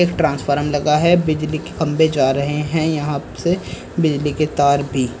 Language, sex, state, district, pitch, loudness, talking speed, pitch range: Hindi, male, Uttar Pradesh, Saharanpur, 150 Hz, -18 LUFS, 170 wpm, 140-160 Hz